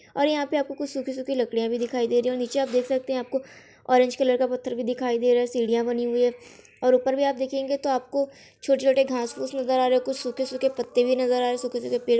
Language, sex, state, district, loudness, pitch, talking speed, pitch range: Hindi, female, Bihar, East Champaran, -25 LUFS, 255 Hz, 275 wpm, 245-265 Hz